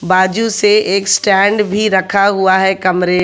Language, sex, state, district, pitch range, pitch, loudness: Hindi, male, Haryana, Jhajjar, 185-205 Hz, 195 Hz, -12 LUFS